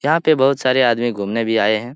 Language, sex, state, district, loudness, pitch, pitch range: Hindi, male, Bihar, Lakhisarai, -17 LUFS, 120 Hz, 110-135 Hz